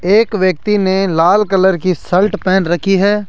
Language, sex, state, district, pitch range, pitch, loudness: Hindi, male, Rajasthan, Jaipur, 185-205 Hz, 190 Hz, -13 LUFS